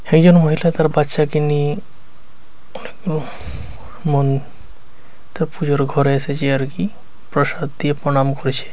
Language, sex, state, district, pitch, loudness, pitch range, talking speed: Bengali, male, West Bengal, Dakshin Dinajpur, 145 Hz, -17 LUFS, 135-155 Hz, 110 wpm